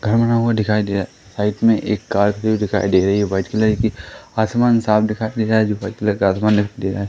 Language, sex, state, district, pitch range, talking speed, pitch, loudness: Hindi, male, Madhya Pradesh, Katni, 100-110 Hz, 290 wpm, 105 Hz, -18 LUFS